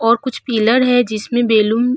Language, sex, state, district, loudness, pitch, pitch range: Hindi, female, Uttar Pradesh, Hamirpur, -15 LUFS, 235 Hz, 220-245 Hz